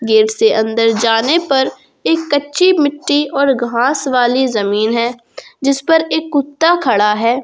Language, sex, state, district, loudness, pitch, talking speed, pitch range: Hindi, female, Jharkhand, Garhwa, -14 LUFS, 265 Hz, 155 wpm, 230-290 Hz